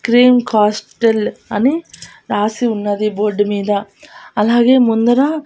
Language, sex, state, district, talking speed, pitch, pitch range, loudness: Telugu, female, Andhra Pradesh, Annamaya, 100 wpm, 225 Hz, 210-245 Hz, -15 LUFS